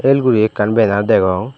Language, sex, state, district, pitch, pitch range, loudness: Chakma, male, Tripura, Dhalai, 110 Hz, 105-125 Hz, -14 LUFS